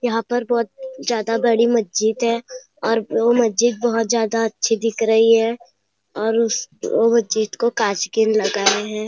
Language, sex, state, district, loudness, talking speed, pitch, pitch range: Hindi, female, Maharashtra, Nagpur, -19 LUFS, 165 wpm, 230 Hz, 220-235 Hz